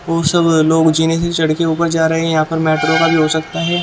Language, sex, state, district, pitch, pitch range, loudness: Hindi, male, Haryana, Jhajjar, 160 Hz, 160-165 Hz, -14 LUFS